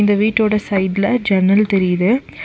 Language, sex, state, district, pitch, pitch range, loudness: Tamil, female, Tamil Nadu, Nilgiris, 205 Hz, 190-215 Hz, -16 LUFS